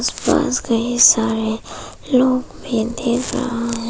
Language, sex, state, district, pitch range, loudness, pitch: Hindi, female, Arunachal Pradesh, Papum Pare, 230-255 Hz, -17 LUFS, 235 Hz